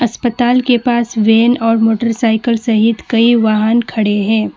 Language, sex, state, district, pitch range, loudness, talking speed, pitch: Hindi, female, West Bengal, Alipurduar, 220-240 Hz, -13 LUFS, 145 wpm, 230 Hz